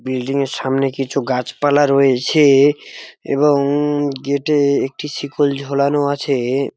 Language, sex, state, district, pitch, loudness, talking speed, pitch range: Bengali, male, West Bengal, Jalpaiguri, 140 Hz, -16 LUFS, 115 wpm, 135-145 Hz